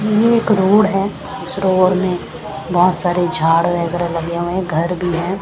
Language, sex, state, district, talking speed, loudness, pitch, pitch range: Hindi, female, Punjab, Kapurthala, 190 wpm, -16 LUFS, 180 Hz, 170-195 Hz